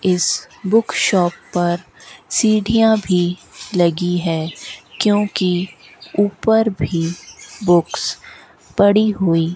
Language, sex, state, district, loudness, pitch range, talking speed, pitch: Hindi, female, Rajasthan, Bikaner, -17 LUFS, 175-215 Hz, 95 wpm, 185 Hz